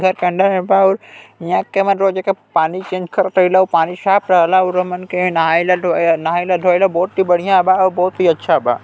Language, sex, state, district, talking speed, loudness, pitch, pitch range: Chhattisgarhi, male, Chhattisgarh, Balrampur, 225 wpm, -15 LUFS, 185 Hz, 175-190 Hz